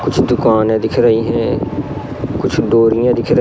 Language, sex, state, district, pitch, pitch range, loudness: Hindi, male, Madhya Pradesh, Katni, 115 Hz, 110-115 Hz, -14 LUFS